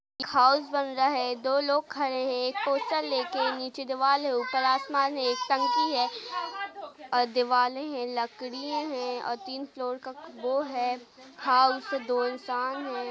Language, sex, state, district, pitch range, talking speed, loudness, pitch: Hindi, female, Uttar Pradesh, Jalaun, 250-280 Hz, 150 wpm, -28 LUFS, 260 Hz